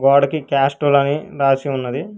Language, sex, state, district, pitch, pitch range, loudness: Telugu, male, Telangana, Hyderabad, 140 Hz, 135-145 Hz, -17 LUFS